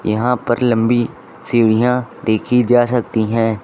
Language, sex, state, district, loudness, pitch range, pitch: Hindi, male, Uttar Pradesh, Lucknow, -16 LUFS, 110-125 Hz, 120 Hz